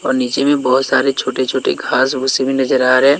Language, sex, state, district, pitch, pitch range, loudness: Hindi, male, Bihar, West Champaran, 130 Hz, 130-135 Hz, -15 LUFS